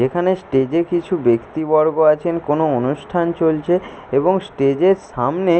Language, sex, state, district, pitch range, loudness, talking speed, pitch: Bengali, male, West Bengal, Jalpaiguri, 145-180 Hz, -18 LUFS, 130 wpm, 160 Hz